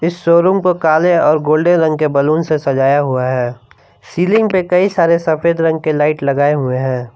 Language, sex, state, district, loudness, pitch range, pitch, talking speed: Hindi, male, Jharkhand, Palamu, -13 LUFS, 140-170 Hz, 155 Hz, 200 wpm